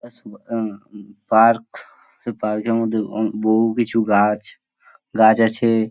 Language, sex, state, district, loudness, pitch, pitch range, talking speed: Bengali, male, West Bengal, Purulia, -19 LUFS, 110 Hz, 105-115 Hz, 130 wpm